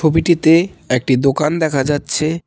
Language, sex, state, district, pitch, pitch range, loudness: Bengali, male, West Bengal, Cooch Behar, 155 Hz, 140-165 Hz, -15 LUFS